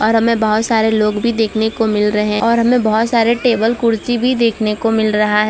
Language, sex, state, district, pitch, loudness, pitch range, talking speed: Hindi, female, Gujarat, Valsad, 225 Hz, -14 LUFS, 215-230 Hz, 250 wpm